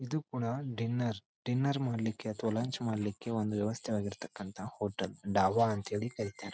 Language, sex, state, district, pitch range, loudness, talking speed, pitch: Kannada, male, Karnataka, Dharwad, 105-120 Hz, -35 LUFS, 140 wpm, 110 Hz